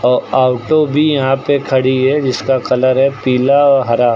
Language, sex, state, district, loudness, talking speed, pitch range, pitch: Hindi, male, Uttar Pradesh, Lucknow, -13 LUFS, 175 wpm, 130-140 Hz, 130 Hz